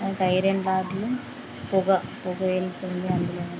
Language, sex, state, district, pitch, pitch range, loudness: Telugu, female, Andhra Pradesh, Krishna, 185 Hz, 185-190 Hz, -26 LUFS